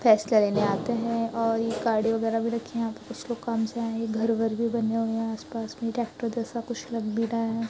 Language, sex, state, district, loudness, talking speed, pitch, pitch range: Hindi, female, Uttar Pradesh, Etah, -27 LUFS, 240 wpm, 230 Hz, 225-230 Hz